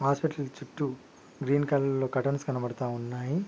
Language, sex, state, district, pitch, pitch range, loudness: Telugu, male, Andhra Pradesh, Guntur, 135 Hz, 130-145 Hz, -30 LUFS